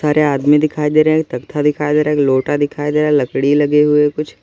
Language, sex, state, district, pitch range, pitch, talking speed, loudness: Hindi, male, Uttar Pradesh, Lalitpur, 145-150 Hz, 150 Hz, 285 wpm, -14 LUFS